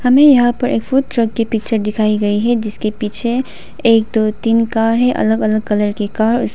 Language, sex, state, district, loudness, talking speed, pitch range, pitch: Hindi, female, Arunachal Pradesh, Papum Pare, -15 LUFS, 220 wpm, 215-240 Hz, 225 Hz